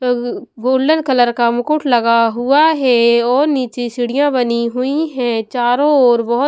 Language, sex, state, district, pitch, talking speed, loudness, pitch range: Hindi, female, Punjab, Pathankot, 245 Hz, 150 wpm, -14 LUFS, 240-275 Hz